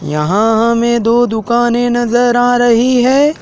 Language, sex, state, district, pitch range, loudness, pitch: Hindi, male, Madhya Pradesh, Dhar, 230-245 Hz, -12 LUFS, 240 Hz